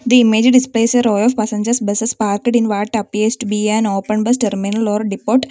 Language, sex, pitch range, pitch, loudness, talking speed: English, female, 210-235 Hz, 220 Hz, -15 LUFS, 220 wpm